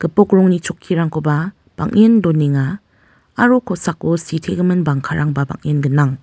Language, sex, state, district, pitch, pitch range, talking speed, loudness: Garo, female, Meghalaya, West Garo Hills, 170 Hz, 150-185 Hz, 105 wpm, -16 LUFS